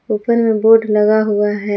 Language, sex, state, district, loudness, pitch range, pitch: Hindi, female, Jharkhand, Palamu, -13 LUFS, 210-225 Hz, 215 Hz